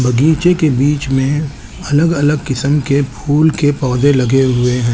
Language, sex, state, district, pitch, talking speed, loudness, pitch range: Hindi, male, Chandigarh, Chandigarh, 140 Hz, 170 wpm, -13 LUFS, 130-150 Hz